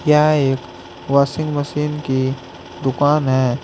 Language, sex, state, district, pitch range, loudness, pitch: Hindi, male, Uttar Pradesh, Saharanpur, 130-150 Hz, -18 LUFS, 135 Hz